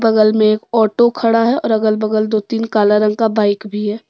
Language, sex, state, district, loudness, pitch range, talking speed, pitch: Hindi, female, Jharkhand, Deoghar, -15 LUFS, 215-225 Hz, 250 wpm, 215 Hz